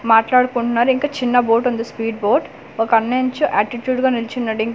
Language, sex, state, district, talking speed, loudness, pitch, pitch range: Telugu, female, Andhra Pradesh, Manyam, 165 wpm, -18 LUFS, 240 Hz, 225-255 Hz